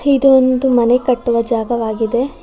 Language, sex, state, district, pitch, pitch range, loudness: Kannada, female, Karnataka, Bangalore, 245 Hz, 235-265 Hz, -14 LUFS